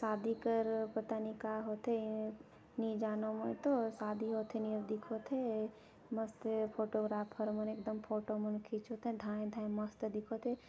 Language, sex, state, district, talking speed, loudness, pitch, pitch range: Chhattisgarhi, female, Chhattisgarh, Jashpur, 175 wpm, -40 LUFS, 220 Hz, 215-225 Hz